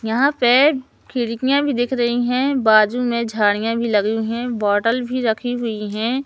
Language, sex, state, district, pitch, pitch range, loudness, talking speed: Hindi, male, Madhya Pradesh, Katni, 240 Hz, 220-250 Hz, -18 LUFS, 180 wpm